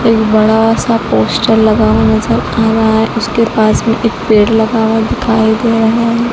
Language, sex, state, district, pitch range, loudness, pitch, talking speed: Hindi, female, Madhya Pradesh, Dhar, 220-230 Hz, -11 LUFS, 225 Hz, 190 wpm